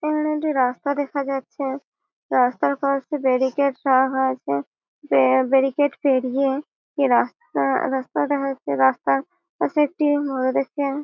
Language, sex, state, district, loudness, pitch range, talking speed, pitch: Bengali, female, West Bengal, Malda, -21 LUFS, 260-285 Hz, 115 wpm, 275 Hz